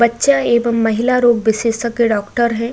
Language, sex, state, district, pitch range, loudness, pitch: Hindi, female, Uttar Pradesh, Budaun, 225-240 Hz, -15 LUFS, 235 Hz